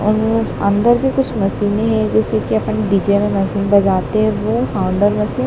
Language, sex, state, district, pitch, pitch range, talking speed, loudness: Hindi, female, Madhya Pradesh, Dhar, 205 Hz, 195-220 Hz, 210 wpm, -16 LUFS